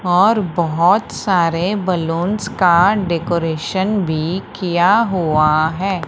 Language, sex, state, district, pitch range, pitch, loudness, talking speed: Hindi, female, Madhya Pradesh, Umaria, 165-195 Hz, 175 Hz, -16 LUFS, 100 wpm